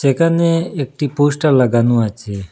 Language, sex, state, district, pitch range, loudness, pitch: Bengali, male, Assam, Hailakandi, 120-155 Hz, -15 LUFS, 140 Hz